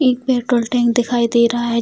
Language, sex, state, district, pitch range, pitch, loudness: Hindi, female, Bihar, Jamui, 235-245 Hz, 240 Hz, -16 LUFS